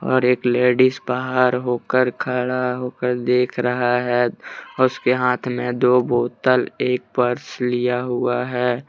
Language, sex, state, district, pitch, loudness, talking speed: Hindi, male, Jharkhand, Deoghar, 125 Hz, -20 LUFS, 135 wpm